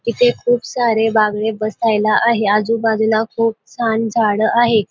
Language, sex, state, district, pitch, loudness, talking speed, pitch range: Marathi, female, Maharashtra, Dhule, 225 Hz, -16 LUFS, 135 wpm, 215-235 Hz